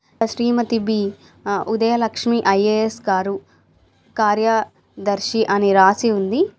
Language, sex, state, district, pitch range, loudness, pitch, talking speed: Telugu, female, Andhra Pradesh, Chittoor, 195-225 Hz, -18 LUFS, 215 Hz, 100 wpm